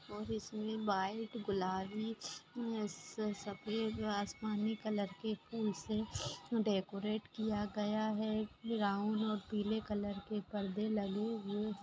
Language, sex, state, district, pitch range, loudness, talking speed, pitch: Hindi, female, Maharashtra, Nagpur, 205-220 Hz, -39 LUFS, 130 wpm, 215 Hz